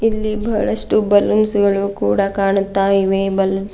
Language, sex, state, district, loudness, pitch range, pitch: Kannada, female, Karnataka, Bidar, -16 LUFS, 195-215 Hz, 200 Hz